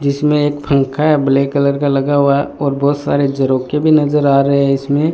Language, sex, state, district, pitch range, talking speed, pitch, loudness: Hindi, male, Rajasthan, Bikaner, 140-145 Hz, 210 wpm, 140 Hz, -14 LUFS